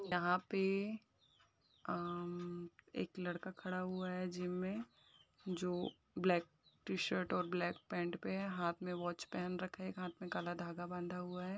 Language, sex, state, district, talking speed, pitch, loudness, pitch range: Hindi, female, Uttar Pradesh, Hamirpur, 165 wpm, 180 Hz, -42 LUFS, 175-185 Hz